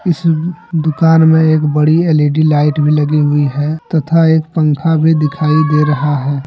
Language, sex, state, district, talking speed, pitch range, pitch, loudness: Hindi, male, Jharkhand, Deoghar, 175 wpm, 150-160 Hz, 155 Hz, -12 LUFS